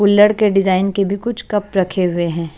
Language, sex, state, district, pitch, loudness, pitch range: Hindi, female, Maharashtra, Washim, 195 Hz, -16 LUFS, 185-210 Hz